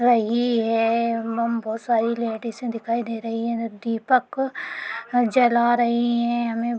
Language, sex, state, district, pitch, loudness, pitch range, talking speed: Hindi, female, Uttar Pradesh, Deoria, 235 Hz, -23 LUFS, 230-240 Hz, 130 wpm